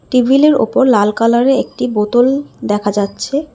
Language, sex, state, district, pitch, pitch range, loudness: Bengali, female, West Bengal, Alipurduar, 250 Hz, 210-270 Hz, -13 LUFS